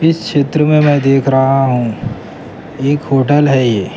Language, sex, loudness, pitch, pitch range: Urdu, male, -12 LUFS, 135 Hz, 135-150 Hz